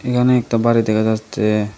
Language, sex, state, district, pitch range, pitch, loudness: Bengali, male, Tripura, Dhalai, 110-120 Hz, 115 Hz, -17 LUFS